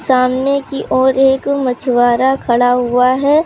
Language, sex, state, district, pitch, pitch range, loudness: Hindi, female, Uttar Pradesh, Lucknow, 260 Hz, 245-275 Hz, -13 LUFS